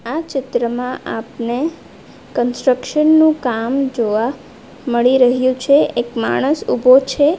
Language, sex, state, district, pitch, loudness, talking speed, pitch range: Gujarati, female, Gujarat, Valsad, 255 Hz, -16 LUFS, 115 wpm, 240-285 Hz